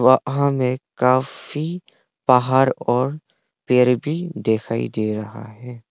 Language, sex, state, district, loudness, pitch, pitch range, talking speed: Hindi, male, Arunachal Pradesh, Longding, -20 LUFS, 130 Hz, 120-140 Hz, 100 wpm